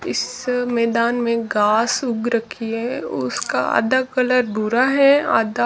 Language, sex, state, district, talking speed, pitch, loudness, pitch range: Hindi, female, Rajasthan, Jaisalmer, 140 wpm, 240 Hz, -19 LUFS, 225-255 Hz